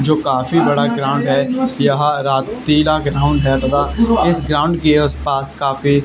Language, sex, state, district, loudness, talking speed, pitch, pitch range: Hindi, male, Haryana, Charkhi Dadri, -15 LUFS, 160 wpm, 145 Hz, 140-155 Hz